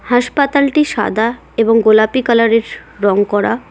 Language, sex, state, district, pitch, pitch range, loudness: Bengali, female, West Bengal, Cooch Behar, 230 Hz, 215-255 Hz, -13 LUFS